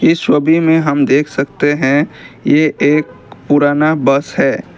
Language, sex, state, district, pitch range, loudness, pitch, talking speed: Hindi, male, Assam, Kamrup Metropolitan, 140-155 Hz, -13 LUFS, 145 Hz, 150 wpm